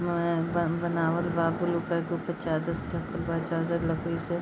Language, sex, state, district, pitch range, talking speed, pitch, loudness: Bhojpuri, female, Bihar, East Champaran, 165-170 Hz, 205 wpm, 170 Hz, -29 LUFS